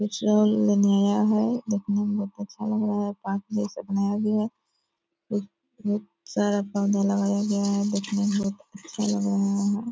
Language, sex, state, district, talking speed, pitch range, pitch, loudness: Hindi, female, Bihar, Purnia, 190 wpm, 200-210 Hz, 205 Hz, -25 LUFS